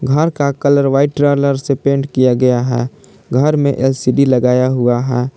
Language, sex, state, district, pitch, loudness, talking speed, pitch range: Hindi, male, Jharkhand, Palamu, 135 Hz, -14 LUFS, 180 wpm, 125-140 Hz